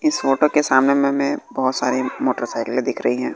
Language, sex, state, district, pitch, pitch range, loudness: Hindi, male, Bihar, West Champaran, 130 Hz, 125-140 Hz, -19 LUFS